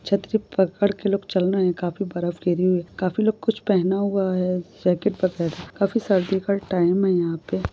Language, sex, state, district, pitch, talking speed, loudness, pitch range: Hindi, female, Jharkhand, Jamtara, 190 Hz, 215 wpm, -23 LUFS, 180-200 Hz